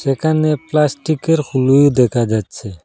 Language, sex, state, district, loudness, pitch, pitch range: Bengali, male, Assam, Hailakandi, -15 LUFS, 140 Hz, 125-155 Hz